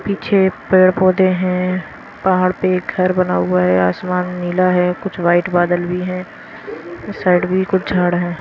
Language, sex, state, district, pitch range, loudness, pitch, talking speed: Hindi, female, Himachal Pradesh, Shimla, 175-185 Hz, -16 LUFS, 185 Hz, 165 wpm